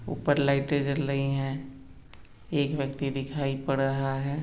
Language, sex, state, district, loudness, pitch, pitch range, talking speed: Hindi, male, Bihar, East Champaran, -28 LUFS, 135 Hz, 135-140 Hz, 150 wpm